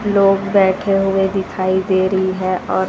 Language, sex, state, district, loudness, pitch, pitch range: Hindi, female, Chhattisgarh, Raipur, -16 LUFS, 190 Hz, 185-195 Hz